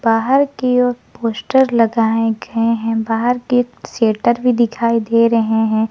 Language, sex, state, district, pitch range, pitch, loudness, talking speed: Hindi, female, Jharkhand, Garhwa, 225-245 Hz, 230 Hz, -16 LUFS, 150 wpm